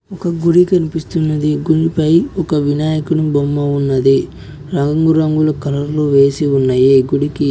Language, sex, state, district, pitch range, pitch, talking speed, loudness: Telugu, male, Telangana, Mahabubabad, 140-160 Hz, 150 Hz, 105 wpm, -14 LUFS